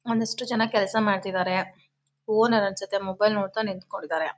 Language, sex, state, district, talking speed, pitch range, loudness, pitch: Kannada, female, Karnataka, Mysore, 150 wpm, 190-220 Hz, -25 LUFS, 200 Hz